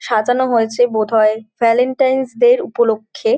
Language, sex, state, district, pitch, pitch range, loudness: Bengali, female, West Bengal, Jhargram, 240 Hz, 220-260 Hz, -15 LUFS